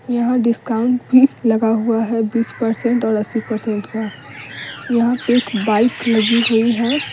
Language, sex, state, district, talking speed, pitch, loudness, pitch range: Hindi, female, Bihar, Patna, 150 wpm, 230 Hz, -17 LUFS, 225-240 Hz